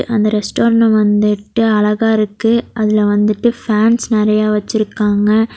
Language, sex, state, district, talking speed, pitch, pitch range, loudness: Tamil, female, Tamil Nadu, Nilgiris, 110 wpm, 215 Hz, 210-225 Hz, -14 LUFS